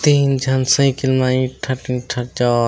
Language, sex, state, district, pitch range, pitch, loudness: Chhattisgarhi, male, Chhattisgarh, Raigarh, 125-135 Hz, 130 Hz, -17 LUFS